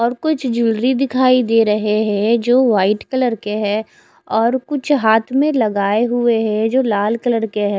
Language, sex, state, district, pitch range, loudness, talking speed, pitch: Hindi, female, Odisha, Khordha, 215-255 Hz, -16 LUFS, 185 wpm, 230 Hz